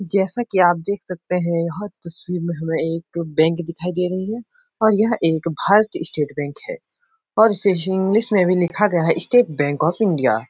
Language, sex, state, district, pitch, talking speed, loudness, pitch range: Hindi, male, Uttar Pradesh, Etah, 180 Hz, 205 wpm, -19 LUFS, 165-210 Hz